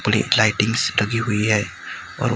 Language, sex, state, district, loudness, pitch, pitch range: Hindi, male, Maharashtra, Gondia, -19 LUFS, 110 Hz, 105-110 Hz